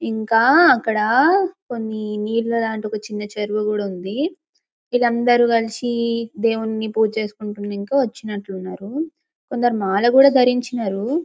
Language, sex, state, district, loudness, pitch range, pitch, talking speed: Telugu, female, Telangana, Karimnagar, -19 LUFS, 210-250 Hz, 225 Hz, 110 wpm